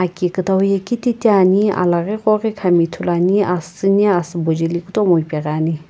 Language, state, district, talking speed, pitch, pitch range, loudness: Sumi, Nagaland, Kohima, 140 wpm, 180 Hz, 170-205 Hz, -16 LUFS